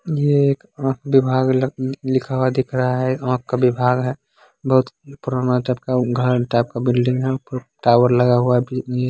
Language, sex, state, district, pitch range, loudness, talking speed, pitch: Angika, male, Bihar, Begusarai, 125-130 Hz, -19 LUFS, 185 wpm, 130 Hz